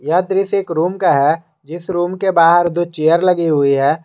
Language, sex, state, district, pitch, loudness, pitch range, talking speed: Hindi, male, Jharkhand, Garhwa, 170 Hz, -15 LUFS, 160-180 Hz, 220 wpm